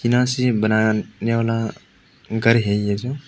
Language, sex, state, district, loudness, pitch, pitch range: Hindi, male, Arunachal Pradesh, Papum Pare, -20 LUFS, 115 Hz, 110-125 Hz